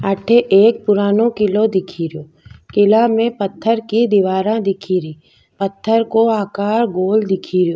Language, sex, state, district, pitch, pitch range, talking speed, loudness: Rajasthani, female, Rajasthan, Nagaur, 205 Hz, 190-225 Hz, 145 wpm, -16 LUFS